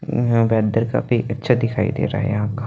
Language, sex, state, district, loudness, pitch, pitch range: Hindi, male, Chandigarh, Chandigarh, -20 LUFS, 115 Hz, 110-120 Hz